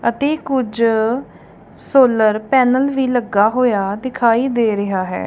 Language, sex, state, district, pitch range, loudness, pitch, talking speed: Punjabi, female, Punjab, Kapurthala, 215-260 Hz, -16 LUFS, 235 Hz, 125 wpm